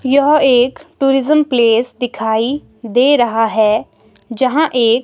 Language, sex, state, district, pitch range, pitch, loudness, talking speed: Hindi, female, Himachal Pradesh, Shimla, 230-280 Hz, 250 Hz, -14 LUFS, 120 wpm